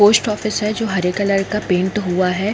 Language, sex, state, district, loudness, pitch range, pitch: Hindi, female, Jharkhand, Jamtara, -18 LUFS, 185-210 Hz, 205 Hz